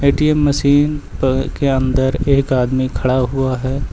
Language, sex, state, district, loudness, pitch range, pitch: Hindi, male, Uttar Pradesh, Lucknow, -16 LUFS, 130-140 Hz, 135 Hz